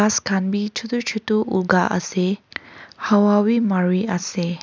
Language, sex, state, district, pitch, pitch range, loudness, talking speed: Nagamese, female, Nagaland, Kohima, 205 Hz, 185-215 Hz, -20 LUFS, 140 wpm